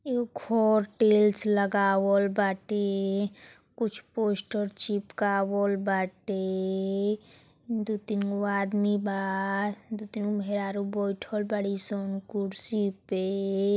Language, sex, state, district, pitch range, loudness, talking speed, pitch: Hindi, female, Uttar Pradesh, Ghazipur, 195-210 Hz, -28 LUFS, 90 wpm, 200 Hz